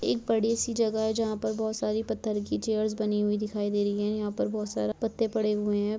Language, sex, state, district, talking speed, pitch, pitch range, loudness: Hindi, female, Chhattisgarh, Korba, 260 wpm, 215 Hz, 210-220 Hz, -29 LUFS